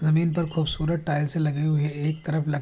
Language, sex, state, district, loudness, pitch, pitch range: Hindi, male, Uttar Pradesh, Hamirpur, -25 LUFS, 155 Hz, 150-160 Hz